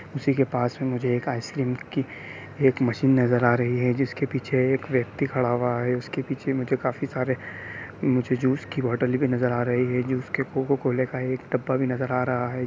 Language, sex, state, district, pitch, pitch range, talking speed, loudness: Hindi, male, Bihar, Sitamarhi, 130 Hz, 125-135 Hz, 215 wpm, -25 LUFS